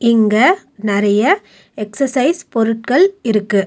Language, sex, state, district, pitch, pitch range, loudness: Tamil, female, Tamil Nadu, Nilgiris, 230 Hz, 210-290 Hz, -15 LUFS